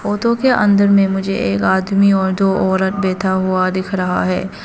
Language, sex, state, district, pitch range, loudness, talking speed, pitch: Hindi, female, Arunachal Pradesh, Papum Pare, 185-200 Hz, -15 LUFS, 195 wpm, 190 Hz